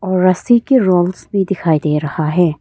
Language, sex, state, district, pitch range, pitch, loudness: Hindi, female, Arunachal Pradesh, Papum Pare, 160-195 Hz, 180 Hz, -15 LUFS